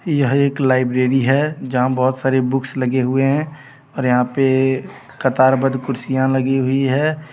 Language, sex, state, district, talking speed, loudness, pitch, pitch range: Hindi, male, Jharkhand, Deoghar, 165 wpm, -17 LUFS, 135 Hz, 130-135 Hz